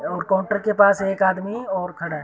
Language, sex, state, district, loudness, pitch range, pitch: Hindi, female, Punjab, Fazilka, -20 LUFS, 185-205 Hz, 195 Hz